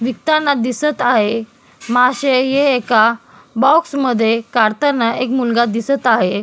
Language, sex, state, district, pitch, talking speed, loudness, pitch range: Marathi, female, Maharashtra, Solapur, 245 Hz, 120 wpm, -15 LUFS, 230-275 Hz